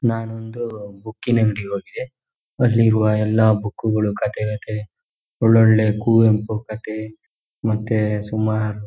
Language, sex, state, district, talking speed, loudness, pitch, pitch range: Kannada, male, Karnataka, Shimoga, 130 wpm, -20 LUFS, 110 Hz, 105-115 Hz